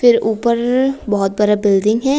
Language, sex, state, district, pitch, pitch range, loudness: Hindi, female, Tripura, West Tripura, 225 Hz, 210-245 Hz, -15 LUFS